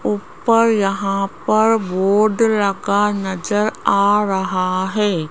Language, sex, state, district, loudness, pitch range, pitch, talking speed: Hindi, female, Rajasthan, Jaipur, -17 LUFS, 190-215 Hz, 200 Hz, 100 wpm